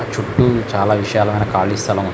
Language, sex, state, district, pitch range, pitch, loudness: Telugu, male, Andhra Pradesh, Krishna, 100-115 Hz, 105 Hz, -17 LUFS